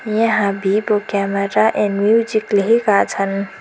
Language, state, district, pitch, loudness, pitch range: Nepali, West Bengal, Darjeeling, 205 Hz, -17 LUFS, 200-220 Hz